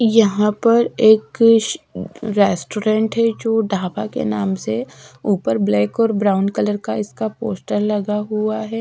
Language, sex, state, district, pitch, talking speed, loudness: Hindi, female, Odisha, Sambalpur, 210 Hz, 145 wpm, -18 LUFS